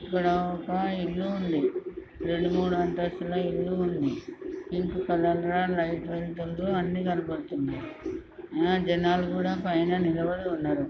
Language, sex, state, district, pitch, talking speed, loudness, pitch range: Telugu, male, Andhra Pradesh, Srikakulam, 180 Hz, 115 wpm, -28 LUFS, 175-190 Hz